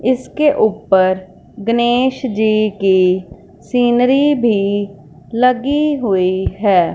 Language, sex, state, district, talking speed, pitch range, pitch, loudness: Hindi, female, Punjab, Fazilka, 85 wpm, 190-250 Hz, 220 Hz, -15 LUFS